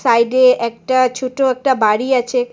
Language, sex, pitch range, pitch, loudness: Bengali, female, 240-260 Hz, 255 Hz, -15 LUFS